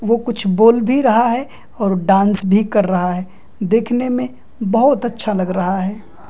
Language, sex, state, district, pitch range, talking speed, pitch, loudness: Hindi, male, Bihar, Madhepura, 195-240 Hz, 190 wpm, 215 Hz, -16 LUFS